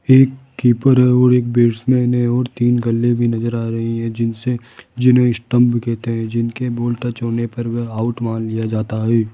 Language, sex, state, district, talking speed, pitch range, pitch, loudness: Hindi, male, Rajasthan, Jaipur, 200 wpm, 115-125 Hz, 120 Hz, -17 LUFS